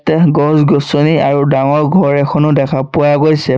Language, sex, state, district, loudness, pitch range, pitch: Assamese, male, Assam, Sonitpur, -11 LUFS, 140-155 Hz, 145 Hz